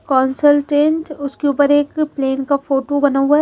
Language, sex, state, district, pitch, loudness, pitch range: Hindi, female, Haryana, Charkhi Dadri, 285 Hz, -16 LUFS, 275-295 Hz